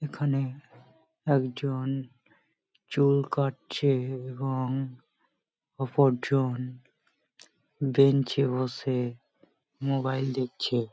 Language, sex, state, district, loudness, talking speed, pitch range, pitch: Bengali, male, West Bengal, Malda, -28 LUFS, 60 wpm, 130-140 Hz, 135 Hz